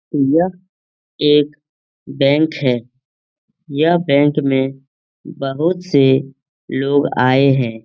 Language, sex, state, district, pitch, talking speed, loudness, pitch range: Hindi, male, Bihar, Jamui, 140 Hz, 100 wpm, -16 LUFS, 135-155 Hz